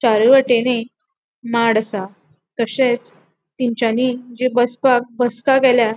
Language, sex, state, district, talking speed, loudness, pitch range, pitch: Konkani, female, Goa, North and South Goa, 110 wpm, -17 LUFS, 225-250 Hz, 240 Hz